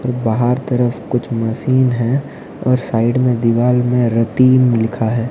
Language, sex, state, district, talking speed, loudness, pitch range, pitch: Hindi, male, Odisha, Nuapada, 160 wpm, -15 LUFS, 115-125 Hz, 125 Hz